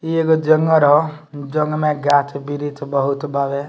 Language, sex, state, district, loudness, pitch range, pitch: Bhojpuri, male, Bihar, Muzaffarpur, -17 LUFS, 140-155 Hz, 145 Hz